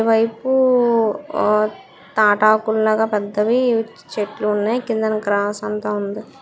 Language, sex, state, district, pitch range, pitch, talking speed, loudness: Telugu, female, Andhra Pradesh, Srikakulam, 210-230 Hz, 215 Hz, 105 wpm, -18 LUFS